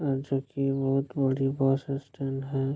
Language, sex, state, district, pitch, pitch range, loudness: Hindi, male, Bihar, Kishanganj, 135 Hz, 135-140 Hz, -28 LUFS